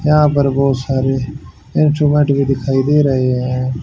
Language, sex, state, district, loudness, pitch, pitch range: Hindi, male, Haryana, Jhajjar, -15 LUFS, 135 Hz, 130-145 Hz